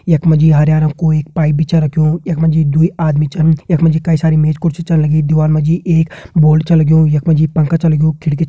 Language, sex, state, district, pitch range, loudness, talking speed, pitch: Hindi, male, Uttarakhand, Uttarkashi, 155-165 Hz, -12 LUFS, 290 wpm, 160 Hz